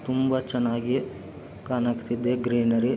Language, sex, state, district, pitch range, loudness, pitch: Kannada, male, Karnataka, Belgaum, 120-130 Hz, -26 LUFS, 125 Hz